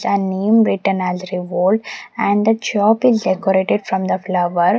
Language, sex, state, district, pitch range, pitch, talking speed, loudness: English, female, Maharashtra, Mumbai Suburban, 185-215 Hz, 195 Hz, 165 wpm, -17 LUFS